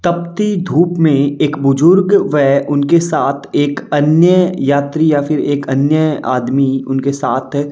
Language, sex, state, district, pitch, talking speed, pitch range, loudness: Hindi, male, Uttar Pradesh, Varanasi, 145 Hz, 150 wpm, 140-170 Hz, -13 LUFS